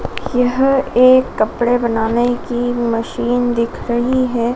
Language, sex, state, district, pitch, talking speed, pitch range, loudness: Hindi, female, Madhya Pradesh, Dhar, 245 Hz, 120 wpm, 235-250 Hz, -16 LUFS